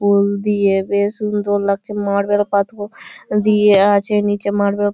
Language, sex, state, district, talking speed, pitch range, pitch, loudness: Bengali, female, West Bengal, Malda, 145 wpm, 200-210 Hz, 205 Hz, -16 LUFS